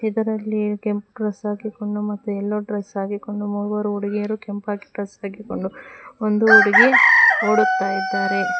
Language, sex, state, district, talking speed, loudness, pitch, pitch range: Kannada, female, Karnataka, Bangalore, 100 wpm, -19 LUFS, 210 Hz, 205-215 Hz